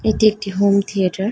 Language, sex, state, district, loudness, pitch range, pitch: Bengali, female, West Bengal, North 24 Parganas, -17 LUFS, 195-215 Hz, 200 Hz